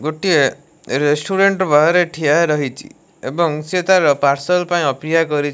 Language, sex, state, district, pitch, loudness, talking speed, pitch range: Odia, male, Odisha, Malkangiri, 155 Hz, -16 LUFS, 140 wpm, 145-180 Hz